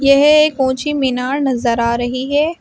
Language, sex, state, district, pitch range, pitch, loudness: Hindi, female, Uttar Pradesh, Shamli, 250-295 Hz, 270 Hz, -15 LUFS